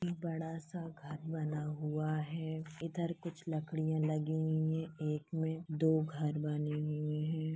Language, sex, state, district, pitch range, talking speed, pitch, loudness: Hindi, female, Uttar Pradesh, Deoria, 150-160 Hz, 150 wpm, 155 Hz, -38 LUFS